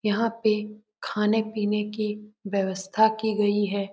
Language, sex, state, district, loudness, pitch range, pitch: Hindi, male, Bihar, Jamui, -25 LUFS, 205-215 Hz, 210 Hz